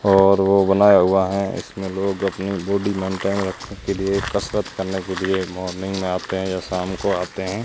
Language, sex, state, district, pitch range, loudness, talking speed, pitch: Hindi, male, Rajasthan, Jaisalmer, 95-100 Hz, -21 LUFS, 205 wpm, 95 Hz